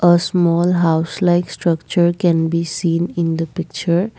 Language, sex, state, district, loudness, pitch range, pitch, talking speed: English, female, Assam, Kamrup Metropolitan, -17 LUFS, 165-175 Hz, 170 Hz, 160 wpm